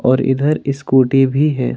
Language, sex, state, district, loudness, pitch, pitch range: Hindi, male, Jharkhand, Ranchi, -15 LUFS, 135 Hz, 130-145 Hz